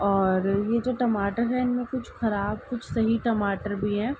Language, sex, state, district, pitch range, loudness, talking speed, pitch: Hindi, female, Uttar Pradesh, Ghazipur, 200-245 Hz, -26 LUFS, 185 wpm, 220 Hz